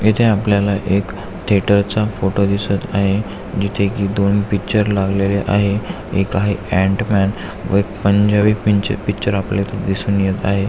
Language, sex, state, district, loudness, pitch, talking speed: Marathi, male, Maharashtra, Aurangabad, -17 LUFS, 100 Hz, 155 wpm